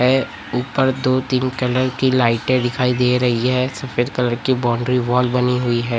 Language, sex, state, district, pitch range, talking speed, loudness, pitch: Hindi, male, Chhattisgarh, Raipur, 125-130 Hz, 190 wpm, -18 LUFS, 125 Hz